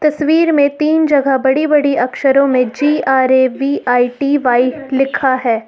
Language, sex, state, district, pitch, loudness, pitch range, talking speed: Hindi, female, Jharkhand, Ranchi, 275 Hz, -13 LUFS, 260-295 Hz, 180 wpm